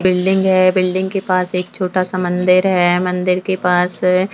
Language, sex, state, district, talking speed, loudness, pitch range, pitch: Hindi, female, Uttarakhand, Tehri Garhwal, 195 wpm, -15 LUFS, 180-185 Hz, 185 Hz